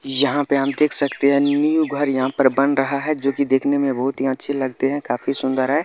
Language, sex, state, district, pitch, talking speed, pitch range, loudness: Maithili, male, Bihar, Madhepura, 140 Hz, 245 wpm, 135-145 Hz, -18 LUFS